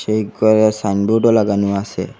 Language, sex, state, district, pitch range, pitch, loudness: Bengali, male, Assam, Hailakandi, 100-110 Hz, 105 Hz, -16 LUFS